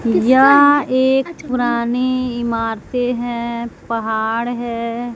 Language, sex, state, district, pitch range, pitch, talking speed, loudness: Hindi, female, Bihar, West Champaran, 235-255 Hz, 240 Hz, 80 wpm, -17 LUFS